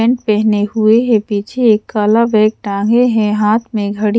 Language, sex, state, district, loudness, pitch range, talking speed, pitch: Hindi, female, Odisha, Sambalpur, -13 LUFS, 210-230 Hz, 185 wpm, 215 Hz